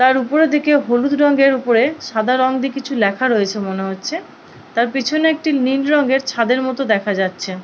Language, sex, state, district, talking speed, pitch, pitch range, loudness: Bengali, female, West Bengal, Purulia, 180 wpm, 260 Hz, 225-285 Hz, -16 LUFS